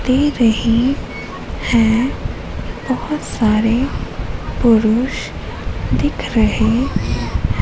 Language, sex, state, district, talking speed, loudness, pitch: Hindi, female, Madhya Pradesh, Katni, 65 wpm, -18 LUFS, 225 Hz